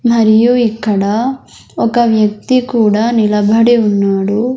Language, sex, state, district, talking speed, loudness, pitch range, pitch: Telugu, male, Andhra Pradesh, Sri Satya Sai, 90 wpm, -12 LUFS, 210-240 Hz, 225 Hz